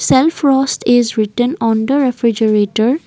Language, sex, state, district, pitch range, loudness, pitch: English, female, Assam, Kamrup Metropolitan, 225-270 Hz, -14 LUFS, 245 Hz